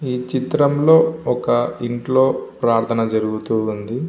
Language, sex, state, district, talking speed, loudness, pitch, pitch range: Telugu, male, Andhra Pradesh, Visakhapatnam, 100 wpm, -18 LUFS, 120 Hz, 110-145 Hz